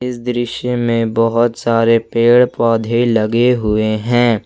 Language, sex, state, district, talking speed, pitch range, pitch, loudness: Hindi, male, Jharkhand, Ranchi, 135 wpm, 115-120 Hz, 115 Hz, -14 LUFS